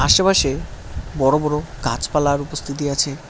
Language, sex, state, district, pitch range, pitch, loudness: Bengali, male, West Bengal, Cooch Behar, 135-150 Hz, 140 Hz, -19 LUFS